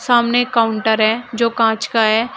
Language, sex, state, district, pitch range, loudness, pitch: Hindi, female, Uttar Pradesh, Shamli, 220-240 Hz, -16 LUFS, 230 Hz